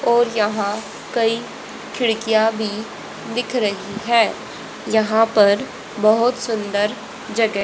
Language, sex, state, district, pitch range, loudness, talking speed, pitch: Hindi, female, Haryana, Rohtak, 210-235 Hz, -19 LUFS, 110 wpm, 220 Hz